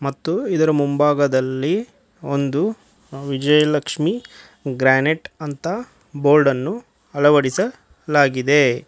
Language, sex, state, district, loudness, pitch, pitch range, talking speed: Kannada, male, Karnataka, Koppal, -19 LUFS, 145 Hz, 140-160 Hz, 65 wpm